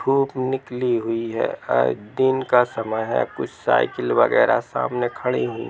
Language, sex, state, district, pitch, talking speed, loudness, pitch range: Hindi, male, Bihar, Sitamarhi, 120 Hz, 145 wpm, -21 LUFS, 110-130 Hz